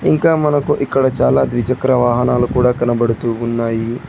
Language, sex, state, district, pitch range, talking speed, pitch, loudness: Telugu, male, Telangana, Hyderabad, 115-130 Hz, 130 wpm, 125 Hz, -15 LUFS